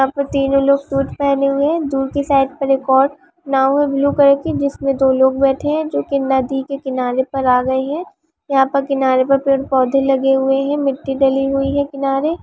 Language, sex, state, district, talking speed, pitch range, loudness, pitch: Hindi, female, Bihar, Vaishali, 220 wpm, 270-280 Hz, -16 LUFS, 275 Hz